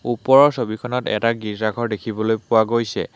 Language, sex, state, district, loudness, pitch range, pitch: Assamese, male, Assam, Hailakandi, -19 LUFS, 110-120 Hz, 115 Hz